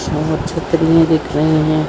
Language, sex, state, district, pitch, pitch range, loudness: Hindi, female, Maharashtra, Sindhudurg, 155 Hz, 155-165 Hz, -15 LUFS